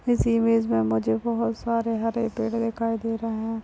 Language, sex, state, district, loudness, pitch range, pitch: Hindi, female, Maharashtra, Chandrapur, -25 LUFS, 225-230 Hz, 230 Hz